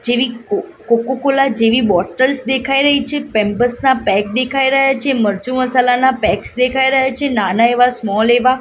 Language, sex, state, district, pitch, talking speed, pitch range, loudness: Gujarati, female, Gujarat, Gandhinagar, 255 Hz, 175 wpm, 235-265 Hz, -14 LUFS